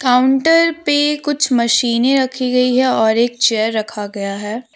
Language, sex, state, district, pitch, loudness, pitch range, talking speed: Hindi, female, Jharkhand, Deoghar, 250 Hz, -15 LUFS, 225-275 Hz, 165 wpm